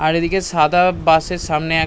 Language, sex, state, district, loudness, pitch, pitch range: Bengali, male, West Bengal, North 24 Parganas, -16 LUFS, 165 Hz, 160-180 Hz